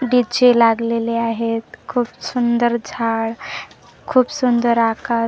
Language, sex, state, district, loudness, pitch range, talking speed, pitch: Marathi, female, Maharashtra, Gondia, -18 LUFS, 230-245 Hz, 100 wpm, 235 Hz